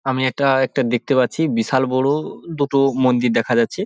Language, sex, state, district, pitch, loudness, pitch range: Bengali, male, West Bengal, Paschim Medinipur, 130 Hz, -18 LUFS, 125-140 Hz